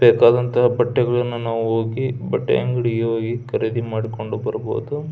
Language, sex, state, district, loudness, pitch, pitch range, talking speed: Kannada, male, Karnataka, Belgaum, -20 LUFS, 120 Hz, 115-125 Hz, 105 wpm